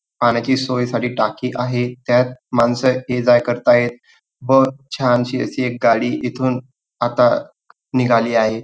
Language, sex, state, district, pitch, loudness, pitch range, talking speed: Marathi, male, Maharashtra, Dhule, 125 Hz, -18 LUFS, 120-130 Hz, 120 wpm